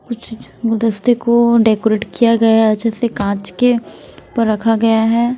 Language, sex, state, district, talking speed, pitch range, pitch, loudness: Hindi, female, Punjab, Kapurthala, 155 wpm, 220-235 Hz, 225 Hz, -14 LUFS